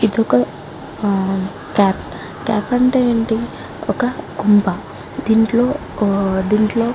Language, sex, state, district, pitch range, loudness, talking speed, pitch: Telugu, female, Andhra Pradesh, Guntur, 195-230 Hz, -17 LUFS, 105 wpm, 215 Hz